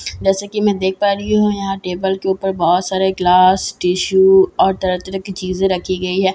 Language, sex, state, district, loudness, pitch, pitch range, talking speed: Hindi, female, Bihar, Katihar, -16 LUFS, 190 Hz, 185-195 Hz, 225 wpm